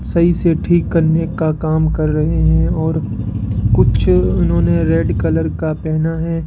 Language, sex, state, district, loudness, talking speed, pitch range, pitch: Hindi, male, Rajasthan, Bikaner, -15 LUFS, 155 wpm, 100-160 Hz, 155 Hz